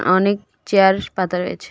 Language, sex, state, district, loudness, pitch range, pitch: Bengali, female, West Bengal, Cooch Behar, -18 LUFS, 185-200 Hz, 190 Hz